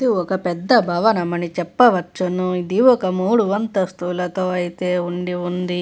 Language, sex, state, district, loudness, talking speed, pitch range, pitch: Telugu, female, Andhra Pradesh, Visakhapatnam, -19 LUFS, 115 wpm, 180-195 Hz, 180 Hz